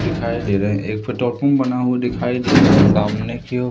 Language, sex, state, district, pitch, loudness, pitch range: Hindi, male, Madhya Pradesh, Umaria, 120 Hz, -17 LUFS, 105-125 Hz